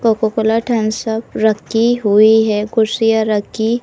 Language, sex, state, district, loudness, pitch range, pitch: Hindi, female, Uttar Pradesh, Budaun, -15 LUFS, 215-225 Hz, 220 Hz